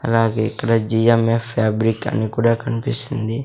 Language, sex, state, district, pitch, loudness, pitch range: Telugu, male, Andhra Pradesh, Sri Satya Sai, 115 Hz, -18 LUFS, 110-115 Hz